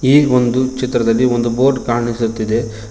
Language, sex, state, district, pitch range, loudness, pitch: Kannada, male, Karnataka, Koppal, 115-130 Hz, -15 LUFS, 120 Hz